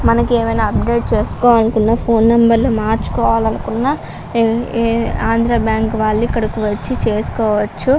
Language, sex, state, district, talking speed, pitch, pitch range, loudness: Telugu, female, Andhra Pradesh, Guntur, 105 wpm, 225 Hz, 220-235 Hz, -15 LUFS